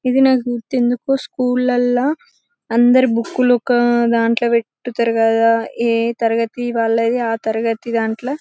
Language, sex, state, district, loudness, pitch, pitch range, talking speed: Telugu, female, Telangana, Karimnagar, -17 LUFS, 240 Hz, 230-250 Hz, 130 wpm